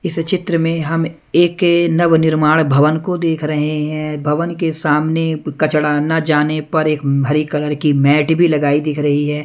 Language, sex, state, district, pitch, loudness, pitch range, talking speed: Hindi, male, Punjab, Kapurthala, 155 Hz, -15 LUFS, 150-165 Hz, 185 wpm